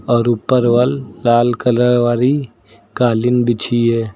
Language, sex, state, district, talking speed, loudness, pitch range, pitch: Hindi, male, Uttar Pradesh, Lucknow, 115 wpm, -15 LUFS, 115-125 Hz, 120 Hz